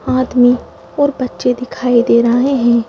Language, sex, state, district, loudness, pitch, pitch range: Hindi, female, Madhya Pradesh, Bhopal, -14 LUFS, 250 Hz, 240-255 Hz